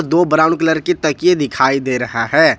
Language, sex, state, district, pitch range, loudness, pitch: Hindi, male, Jharkhand, Ranchi, 130-165 Hz, -15 LUFS, 155 Hz